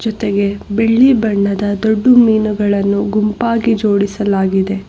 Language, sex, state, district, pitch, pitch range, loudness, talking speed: Kannada, female, Karnataka, Bangalore, 210 Hz, 200-225 Hz, -13 LUFS, 85 wpm